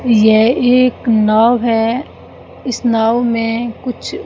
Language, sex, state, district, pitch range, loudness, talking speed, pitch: Hindi, female, Rajasthan, Bikaner, 225-250 Hz, -13 LUFS, 115 wpm, 235 Hz